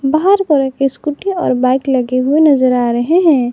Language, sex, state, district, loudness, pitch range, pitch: Hindi, female, Jharkhand, Garhwa, -13 LUFS, 255-310 Hz, 275 Hz